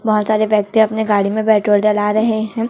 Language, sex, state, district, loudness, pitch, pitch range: Hindi, female, Chhattisgarh, Raipur, -15 LUFS, 215 Hz, 210-220 Hz